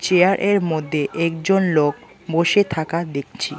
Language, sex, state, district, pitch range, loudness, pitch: Bengali, male, West Bengal, Alipurduar, 155-185 Hz, -19 LUFS, 165 Hz